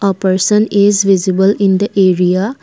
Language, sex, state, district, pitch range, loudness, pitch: English, female, Assam, Kamrup Metropolitan, 190-205 Hz, -12 LUFS, 195 Hz